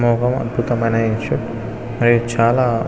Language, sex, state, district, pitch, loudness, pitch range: Telugu, male, Telangana, Nalgonda, 120 Hz, -18 LUFS, 115-120 Hz